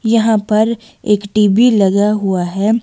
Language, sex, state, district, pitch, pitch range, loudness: Hindi, female, Himachal Pradesh, Shimla, 210 Hz, 205-225 Hz, -14 LUFS